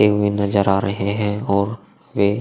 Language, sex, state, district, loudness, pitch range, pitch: Hindi, male, Uttar Pradesh, Jalaun, -20 LUFS, 100-105 Hz, 100 Hz